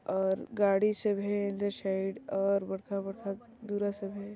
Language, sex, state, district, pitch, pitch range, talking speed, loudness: Chhattisgarhi, female, Chhattisgarh, Sarguja, 200 Hz, 195-205 Hz, 165 wpm, -32 LUFS